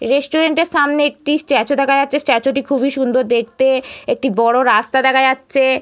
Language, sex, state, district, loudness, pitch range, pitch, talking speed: Bengali, female, West Bengal, Purulia, -15 LUFS, 260-285 Hz, 270 Hz, 165 wpm